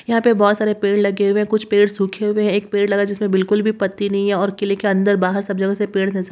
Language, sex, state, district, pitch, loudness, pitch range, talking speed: Hindi, female, Bihar, Purnia, 200 Hz, -18 LUFS, 200-210 Hz, 325 wpm